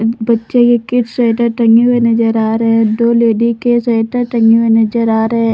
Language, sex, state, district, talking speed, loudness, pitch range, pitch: Hindi, female, Jharkhand, Deoghar, 195 wpm, -12 LUFS, 225-235 Hz, 230 Hz